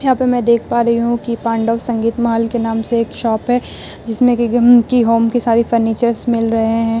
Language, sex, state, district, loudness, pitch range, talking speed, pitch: Hindi, female, Bihar, Vaishali, -15 LUFS, 230-240 Hz, 230 wpm, 235 Hz